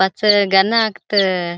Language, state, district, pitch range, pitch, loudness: Bhili, Maharashtra, Dhule, 190-210 Hz, 195 Hz, -15 LUFS